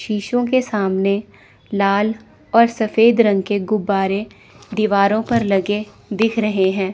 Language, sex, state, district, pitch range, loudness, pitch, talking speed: Hindi, female, Chandigarh, Chandigarh, 200-225 Hz, -18 LUFS, 210 Hz, 130 wpm